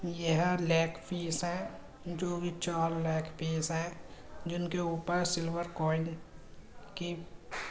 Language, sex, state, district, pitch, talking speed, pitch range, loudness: Hindi, male, Uttar Pradesh, Jalaun, 170 Hz, 110 wpm, 165-175 Hz, -34 LUFS